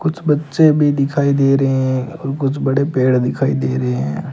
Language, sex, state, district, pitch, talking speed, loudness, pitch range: Hindi, male, Rajasthan, Bikaner, 135 Hz, 205 wpm, -16 LUFS, 130-145 Hz